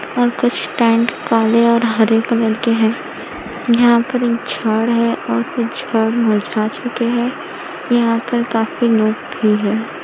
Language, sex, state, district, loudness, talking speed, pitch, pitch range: Hindi, female, Maharashtra, Pune, -16 LUFS, 155 wpm, 230 Hz, 220-240 Hz